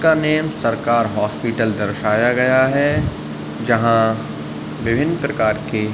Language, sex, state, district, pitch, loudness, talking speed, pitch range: Hindi, male, Uttar Pradesh, Budaun, 115 Hz, -18 LUFS, 120 wpm, 105-135 Hz